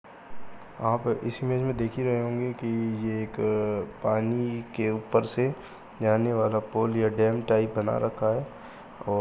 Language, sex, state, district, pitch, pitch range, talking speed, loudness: Hindi, male, Uttar Pradesh, Muzaffarnagar, 115 Hz, 110-120 Hz, 170 wpm, -27 LUFS